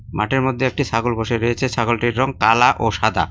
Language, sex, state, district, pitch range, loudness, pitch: Bengali, male, West Bengal, Cooch Behar, 115-130 Hz, -18 LUFS, 120 Hz